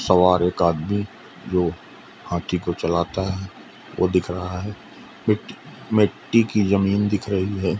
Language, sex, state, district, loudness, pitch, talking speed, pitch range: Hindi, male, Madhya Pradesh, Umaria, -22 LUFS, 90 Hz, 140 wpm, 90-100 Hz